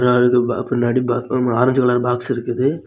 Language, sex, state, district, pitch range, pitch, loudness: Tamil, male, Tamil Nadu, Kanyakumari, 120-125 Hz, 125 Hz, -17 LUFS